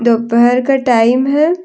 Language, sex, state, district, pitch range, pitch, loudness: Hindi, female, Jharkhand, Deoghar, 235-275 Hz, 250 Hz, -12 LUFS